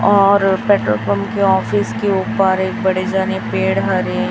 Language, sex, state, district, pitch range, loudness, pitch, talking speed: Hindi, female, Chhattisgarh, Raipur, 185-195 Hz, -16 LUFS, 190 Hz, 165 wpm